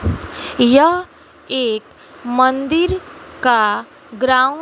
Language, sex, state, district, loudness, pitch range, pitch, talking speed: Hindi, female, Bihar, West Champaran, -16 LUFS, 245-300 Hz, 260 Hz, 80 wpm